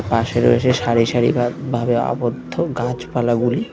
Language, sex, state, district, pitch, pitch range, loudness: Bengali, male, West Bengal, Cooch Behar, 120 Hz, 115-120 Hz, -18 LUFS